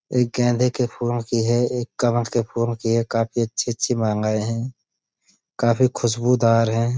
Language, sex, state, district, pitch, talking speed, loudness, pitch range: Hindi, male, Uttar Pradesh, Budaun, 120 Hz, 165 wpm, -21 LUFS, 115-120 Hz